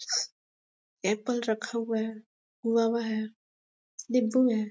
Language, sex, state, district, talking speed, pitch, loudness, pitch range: Hindi, male, Chhattisgarh, Bastar, 115 wpm, 225 Hz, -29 LUFS, 215-230 Hz